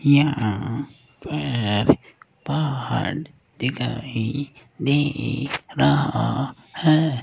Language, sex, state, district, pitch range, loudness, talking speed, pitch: Hindi, male, Rajasthan, Jaipur, 125-145 Hz, -23 LUFS, 60 wpm, 140 Hz